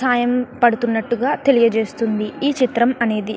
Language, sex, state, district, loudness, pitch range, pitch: Telugu, female, Andhra Pradesh, Krishna, -18 LUFS, 225-250 Hz, 240 Hz